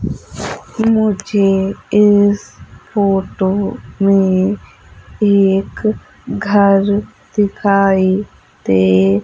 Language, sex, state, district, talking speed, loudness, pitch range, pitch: Hindi, female, Madhya Pradesh, Umaria, 50 wpm, -15 LUFS, 190-205 Hz, 195 Hz